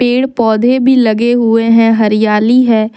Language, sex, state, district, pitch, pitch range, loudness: Hindi, female, Jharkhand, Deoghar, 230 Hz, 220-245 Hz, -10 LUFS